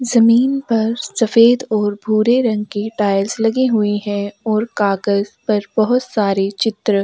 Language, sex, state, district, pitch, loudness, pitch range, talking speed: Hindi, female, Uttarakhand, Tehri Garhwal, 215 Hz, -16 LUFS, 205-235 Hz, 155 wpm